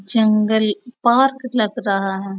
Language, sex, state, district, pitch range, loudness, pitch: Hindi, female, Bihar, Gopalganj, 200-245 Hz, -18 LUFS, 220 Hz